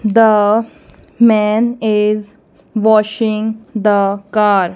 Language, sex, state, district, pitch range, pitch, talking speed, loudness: English, female, Punjab, Kapurthala, 210-220 Hz, 215 Hz, 75 wpm, -14 LUFS